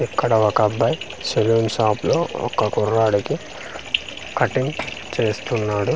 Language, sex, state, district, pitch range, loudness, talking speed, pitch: Telugu, male, Andhra Pradesh, Manyam, 105-115 Hz, -21 LUFS, 100 wpm, 110 Hz